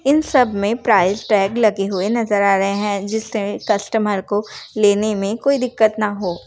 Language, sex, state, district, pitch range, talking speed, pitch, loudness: Hindi, female, Bihar, Saharsa, 200-225 Hz, 195 wpm, 210 Hz, -18 LUFS